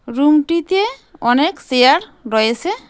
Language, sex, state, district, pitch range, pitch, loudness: Bengali, female, West Bengal, Cooch Behar, 245-350 Hz, 290 Hz, -16 LUFS